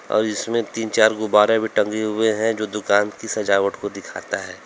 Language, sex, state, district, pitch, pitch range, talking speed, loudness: Hindi, male, Uttar Pradesh, Lalitpur, 105 Hz, 100-110 Hz, 205 wpm, -20 LUFS